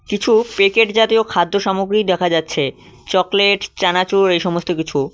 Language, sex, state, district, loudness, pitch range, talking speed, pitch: Bengali, male, West Bengal, Cooch Behar, -16 LUFS, 180-205 Hz, 140 wpm, 195 Hz